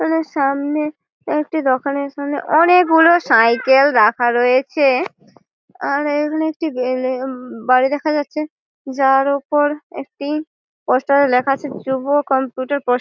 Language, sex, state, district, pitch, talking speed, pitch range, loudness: Bengali, female, West Bengal, Malda, 280 Hz, 140 wpm, 260-300 Hz, -17 LUFS